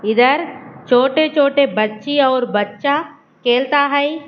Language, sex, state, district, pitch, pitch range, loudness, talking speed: Hindi, female, Haryana, Charkhi Dadri, 275 Hz, 245-285 Hz, -16 LUFS, 110 wpm